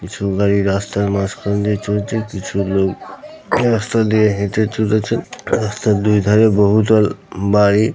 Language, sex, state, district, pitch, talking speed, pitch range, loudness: Bengali, male, West Bengal, North 24 Parganas, 105 Hz, 135 wpm, 100-110 Hz, -16 LUFS